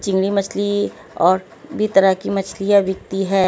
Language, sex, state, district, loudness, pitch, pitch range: Hindi, female, Haryana, Jhajjar, -18 LUFS, 195 Hz, 190-200 Hz